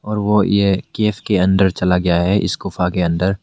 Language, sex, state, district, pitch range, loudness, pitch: Hindi, male, Meghalaya, West Garo Hills, 90-100 Hz, -17 LUFS, 95 Hz